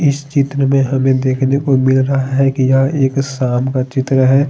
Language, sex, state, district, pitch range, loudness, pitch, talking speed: Hindi, male, Bihar, Patna, 130-135 Hz, -14 LUFS, 135 Hz, 215 wpm